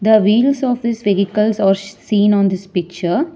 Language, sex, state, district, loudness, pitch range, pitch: English, female, Telangana, Hyderabad, -16 LUFS, 195-230 Hz, 205 Hz